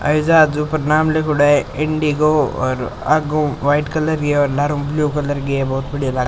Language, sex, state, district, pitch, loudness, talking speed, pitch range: Rajasthani, male, Rajasthan, Churu, 150 Hz, -17 LUFS, 220 wpm, 145-155 Hz